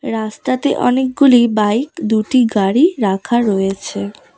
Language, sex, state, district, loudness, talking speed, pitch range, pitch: Bengali, female, West Bengal, Cooch Behar, -15 LUFS, 95 wpm, 205-255 Hz, 225 Hz